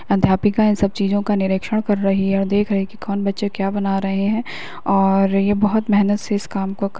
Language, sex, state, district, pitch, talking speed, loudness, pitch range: Bhojpuri, female, Bihar, Saran, 200 Hz, 240 wpm, -19 LUFS, 195-205 Hz